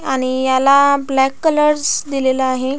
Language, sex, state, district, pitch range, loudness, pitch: Marathi, female, Maharashtra, Pune, 260-280 Hz, -15 LUFS, 270 Hz